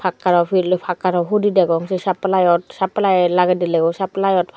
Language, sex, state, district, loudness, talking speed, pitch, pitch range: Chakma, female, Tripura, Dhalai, -17 LUFS, 145 wpm, 185 Hz, 175-190 Hz